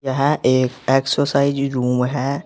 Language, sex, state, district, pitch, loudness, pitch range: Hindi, male, Uttar Pradesh, Saharanpur, 135 Hz, -18 LUFS, 130-140 Hz